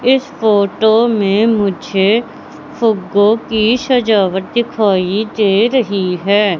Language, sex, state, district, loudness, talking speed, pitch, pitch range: Hindi, female, Madhya Pradesh, Katni, -13 LUFS, 100 wpm, 215 Hz, 200-230 Hz